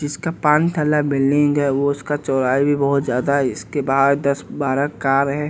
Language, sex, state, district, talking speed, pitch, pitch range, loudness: Hindi, male, Bihar, West Champaran, 175 wpm, 140 Hz, 135-145 Hz, -18 LUFS